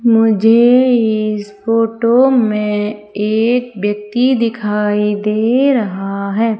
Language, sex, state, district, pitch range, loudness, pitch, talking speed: Hindi, female, Madhya Pradesh, Umaria, 210-235 Hz, -14 LUFS, 220 Hz, 90 wpm